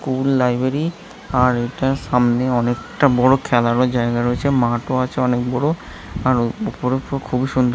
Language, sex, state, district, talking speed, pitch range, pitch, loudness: Bengali, male, West Bengal, Jhargram, 160 wpm, 120-135 Hz, 125 Hz, -19 LUFS